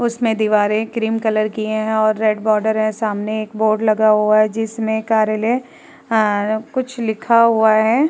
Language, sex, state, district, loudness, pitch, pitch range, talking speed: Hindi, female, Uttar Pradesh, Muzaffarnagar, -17 LUFS, 220 Hz, 215-225 Hz, 170 wpm